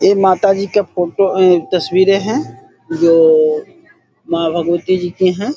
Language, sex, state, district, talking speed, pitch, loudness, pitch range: Hindi, male, Bihar, Saharsa, 140 wpm, 185 Hz, -14 LUFS, 175-210 Hz